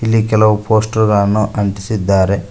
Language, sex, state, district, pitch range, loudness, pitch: Kannada, male, Karnataka, Koppal, 100-110 Hz, -14 LUFS, 105 Hz